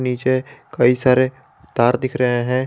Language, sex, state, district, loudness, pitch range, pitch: Hindi, male, Jharkhand, Garhwa, -18 LUFS, 125-130 Hz, 130 Hz